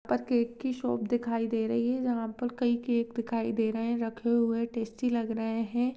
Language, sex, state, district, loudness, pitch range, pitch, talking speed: Hindi, female, Maharashtra, Chandrapur, -30 LUFS, 225-240 Hz, 235 Hz, 220 wpm